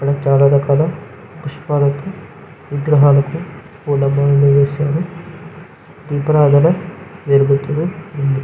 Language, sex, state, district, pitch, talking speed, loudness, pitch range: Telugu, male, Andhra Pradesh, Visakhapatnam, 145 Hz, 70 wpm, -15 LUFS, 140-160 Hz